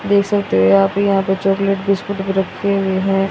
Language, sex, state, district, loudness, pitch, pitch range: Hindi, female, Haryana, Rohtak, -16 LUFS, 195 Hz, 195-200 Hz